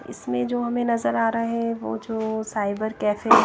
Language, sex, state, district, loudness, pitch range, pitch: Hindi, female, Odisha, Nuapada, -24 LUFS, 210-230 Hz, 220 Hz